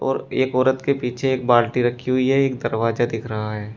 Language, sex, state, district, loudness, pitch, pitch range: Hindi, male, Uttar Pradesh, Shamli, -20 LUFS, 125 Hz, 115-130 Hz